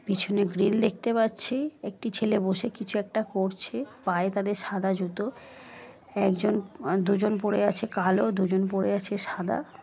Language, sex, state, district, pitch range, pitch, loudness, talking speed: Bengali, female, West Bengal, Paschim Medinipur, 190-220 Hz, 205 Hz, -27 LUFS, 145 wpm